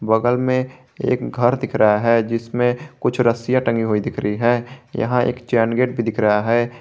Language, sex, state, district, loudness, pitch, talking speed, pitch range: Hindi, male, Jharkhand, Garhwa, -19 LUFS, 120 Hz, 205 wpm, 115-125 Hz